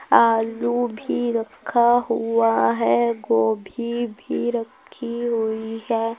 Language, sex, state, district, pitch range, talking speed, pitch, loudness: Hindi, female, Uttar Pradesh, Lucknow, 220-235 Hz, 95 wpm, 230 Hz, -22 LUFS